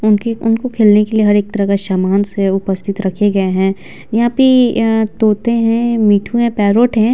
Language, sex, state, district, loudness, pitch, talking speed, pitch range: Hindi, female, Bihar, Vaishali, -13 LUFS, 215 Hz, 200 wpm, 200-230 Hz